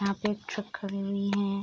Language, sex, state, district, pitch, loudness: Hindi, female, Bihar, Darbhanga, 200 Hz, -32 LUFS